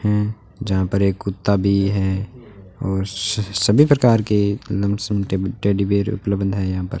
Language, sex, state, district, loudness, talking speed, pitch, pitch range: Hindi, male, Rajasthan, Bikaner, -19 LUFS, 170 wpm, 100 Hz, 95-105 Hz